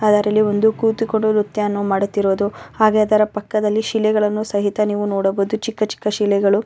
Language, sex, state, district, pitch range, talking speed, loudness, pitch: Kannada, female, Karnataka, Bellary, 205-215 Hz, 135 wpm, -18 LUFS, 210 Hz